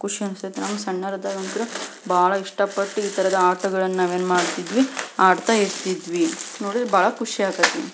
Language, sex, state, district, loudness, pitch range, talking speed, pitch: Kannada, female, Karnataka, Belgaum, -22 LUFS, 185-205 Hz, 100 wpm, 195 Hz